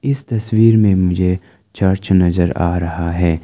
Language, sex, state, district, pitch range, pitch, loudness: Hindi, male, Arunachal Pradesh, Lower Dibang Valley, 90-110 Hz, 90 Hz, -15 LUFS